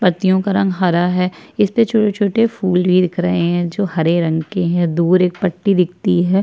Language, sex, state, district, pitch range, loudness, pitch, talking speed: Hindi, female, Chhattisgarh, Kabirdham, 175-195 Hz, -16 LUFS, 180 Hz, 205 wpm